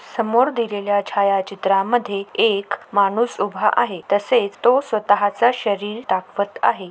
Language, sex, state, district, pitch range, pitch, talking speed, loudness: Marathi, female, Maharashtra, Aurangabad, 200-240 Hz, 205 Hz, 115 wpm, -19 LUFS